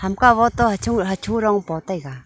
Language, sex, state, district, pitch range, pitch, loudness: Wancho, female, Arunachal Pradesh, Longding, 190-235 Hz, 205 Hz, -19 LUFS